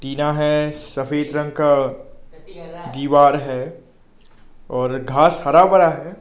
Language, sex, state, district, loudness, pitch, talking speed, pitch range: Hindi, male, Nagaland, Kohima, -17 LUFS, 145 Hz, 115 wpm, 130-150 Hz